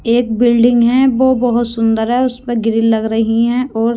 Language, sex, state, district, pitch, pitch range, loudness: Hindi, female, Haryana, Rohtak, 235 Hz, 225-245 Hz, -13 LUFS